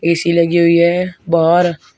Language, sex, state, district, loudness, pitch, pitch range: Hindi, male, Uttar Pradesh, Shamli, -13 LUFS, 170 Hz, 170-175 Hz